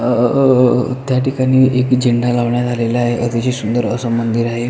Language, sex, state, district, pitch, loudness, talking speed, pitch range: Marathi, male, Maharashtra, Pune, 120 Hz, -15 LUFS, 180 wpm, 120-125 Hz